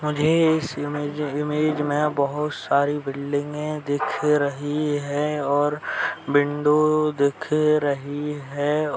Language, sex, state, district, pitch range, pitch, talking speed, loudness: Hindi, male, Uttar Pradesh, Gorakhpur, 145-150 Hz, 150 Hz, 100 wpm, -23 LUFS